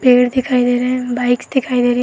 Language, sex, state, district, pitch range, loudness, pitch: Hindi, female, Uttar Pradesh, Varanasi, 245-255 Hz, -16 LUFS, 250 Hz